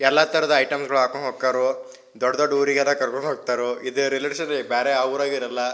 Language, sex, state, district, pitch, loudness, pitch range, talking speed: Kannada, male, Karnataka, Shimoga, 140 Hz, -22 LUFS, 130-155 Hz, 180 wpm